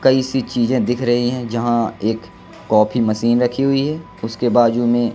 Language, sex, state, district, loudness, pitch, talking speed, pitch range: Hindi, male, Madhya Pradesh, Katni, -17 LUFS, 120 Hz, 185 wpm, 115-125 Hz